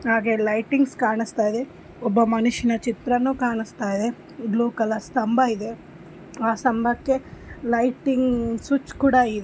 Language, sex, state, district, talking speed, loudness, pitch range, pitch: Kannada, female, Karnataka, Shimoga, 135 wpm, -23 LUFS, 225-255 Hz, 235 Hz